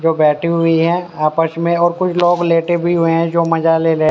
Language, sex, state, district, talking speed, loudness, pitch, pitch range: Hindi, male, Haryana, Rohtak, 265 wpm, -15 LUFS, 165 Hz, 165-170 Hz